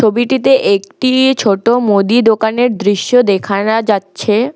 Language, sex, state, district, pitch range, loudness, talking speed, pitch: Bengali, female, West Bengal, Alipurduar, 205-245 Hz, -12 LUFS, 105 wpm, 220 Hz